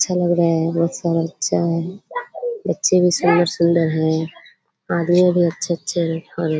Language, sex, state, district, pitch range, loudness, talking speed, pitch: Hindi, female, Bihar, Kishanganj, 165-180 Hz, -19 LUFS, 165 wpm, 170 Hz